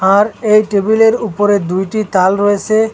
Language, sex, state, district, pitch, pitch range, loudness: Bengali, male, Assam, Hailakandi, 205 Hz, 200-220 Hz, -13 LUFS